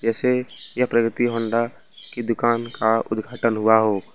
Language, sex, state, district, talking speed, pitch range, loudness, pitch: Hindi, male, Jharkhand, Ranchi, 145 wpm, 110-120 Hz, -21 LUFS, 115 Hz